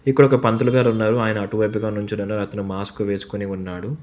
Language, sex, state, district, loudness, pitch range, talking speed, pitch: Telugu, male, Telangana, Hyderabad, -21 LUFS, 100-115 Hz, 165 wpm, 105 Hz